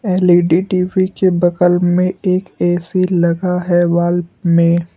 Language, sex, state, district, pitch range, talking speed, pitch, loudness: Hindi, male, Assam, Kamrup Metropolitan, 175-185 Hz, 135 wpm, 175 Hz, -14 LUFS